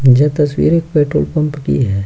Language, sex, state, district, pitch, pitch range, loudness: Hindi, male, Bihar, Kishanganj, 150 Hz, 130-155 Hz, -14 LUFS